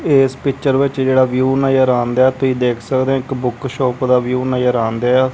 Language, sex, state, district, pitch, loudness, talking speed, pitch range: Punjabi, male, Punjab, Kapurthala, 130 Hz, -16 LUFS, 205 wpm, 125-135 Hz